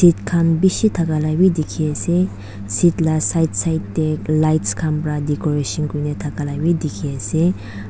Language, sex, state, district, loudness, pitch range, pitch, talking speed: Nagamese, female, Nagaland, Dimapur, -19 LUFS, 150-165 Hz, 155 Hz, 165 wpm